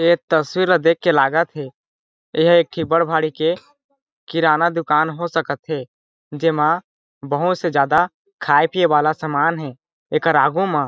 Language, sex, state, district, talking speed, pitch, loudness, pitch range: Chhattisgarhi, male, Chhattisgarh, Jashpur, 170 wpm, 165 Hz, -18 LUFS, 150-170 Hz